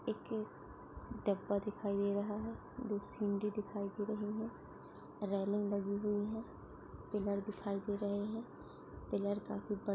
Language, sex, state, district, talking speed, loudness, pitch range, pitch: Hindi, female, Maharashtra, Solapur, 145 wpm, -40 LUFS, 200-210 Hz, 205 Hz